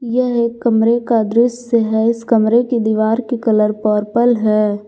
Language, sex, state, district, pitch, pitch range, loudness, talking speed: Hindi, female, Jharkhand, Garhwa, 230 Hz, 220-240 Hz, -15 LUFS, 170 wpm